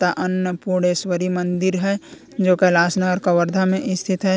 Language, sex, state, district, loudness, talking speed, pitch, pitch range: Hindi, male, Chhattisgarh, Kabirdham, -19 LUFS, 150 wpm, 185 Hz, 180-190 Hz